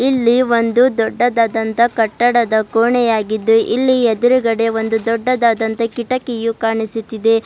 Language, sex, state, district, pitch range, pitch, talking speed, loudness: Kannada, female, Karnataka, Bidar, 225-240 Hz, 230 Hz, 90 wpm, -15 LUFS